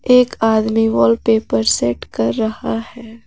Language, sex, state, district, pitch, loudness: Hindi, female, Jharkhand, Garhwa, 220 Hz, -16 LUFS